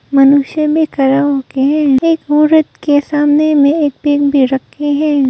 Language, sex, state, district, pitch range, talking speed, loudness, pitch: Hindi, female, Arunachal Pradesh, Papum Pare, 275-300 Hz, 180 wpm, -12 LUFS, 290 Hz